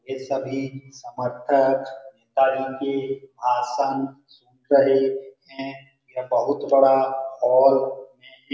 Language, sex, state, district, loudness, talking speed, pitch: Hindi, male, Bihar, Saran, -22 LUFS, 75 wpm, 135 Hz